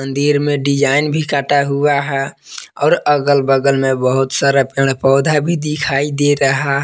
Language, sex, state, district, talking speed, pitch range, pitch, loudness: Hindi, male, Jharkhand, Palamu, 165 wpm, 135-145 Hz, 140 Hz, -15 LUFS